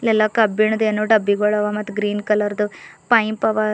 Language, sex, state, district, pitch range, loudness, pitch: Kannada, female, Karnataka, Bidar, 210-220 Hz, -19 LUFS, 215 Hz